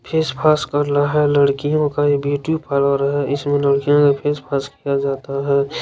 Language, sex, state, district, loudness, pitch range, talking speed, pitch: Maithili, male, Bihar, Darbhanga, -18 LUFS, 140-145 Hz, 185 wpm, 145 Hz